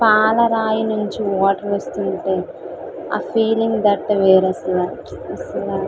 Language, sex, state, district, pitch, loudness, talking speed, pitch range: Telugu, female, Andhra Pradesh, Visakhapatnam, 210 Hz, -18 LUFS, 110 wpm, 195-225 Hz